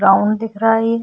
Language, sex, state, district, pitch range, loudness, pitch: Hindi, female, Goa, North and South Goa, 210-225 Hz, -16 LUFS, 225 Hz